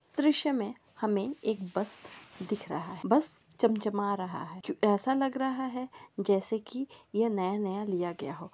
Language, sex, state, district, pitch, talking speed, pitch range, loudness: Hindi, female, Uttarakhand, Uttarkashi, 210 Hz, 170 wpm, 195-250 Hz, -32 LUFS